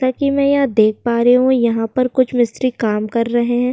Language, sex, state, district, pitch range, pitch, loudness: Hindi, female, Uttar Pradesh, Jyotiba Phule Nagar, 235-255 Hz, 245 Hz, -16 LUFS